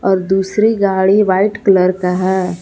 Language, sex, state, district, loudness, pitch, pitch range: Hindi, female, Jharkhand, Palamu, -13 LUFS, 190 Hz, 185-200 Hz